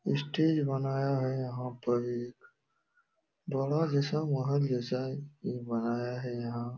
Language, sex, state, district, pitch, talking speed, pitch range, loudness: Hindi, male, Uttar Pradesh, Jalaun, 135 Hz, 125 wpm, 125-145 Hz, -32 LUFS